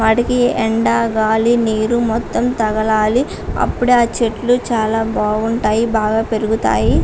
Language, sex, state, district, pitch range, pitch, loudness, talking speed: Telugu, female, Andhra Pradesh, Guntur, 215-235 Hz, 220 Hz, -16 LUFS, 85 wpm